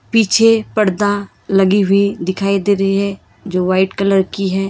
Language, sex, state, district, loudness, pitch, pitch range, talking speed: Hindi, female, Karnataka, Bangalore, -15 LUFS, 195 Hz, 195-205 Hz, 165 wpm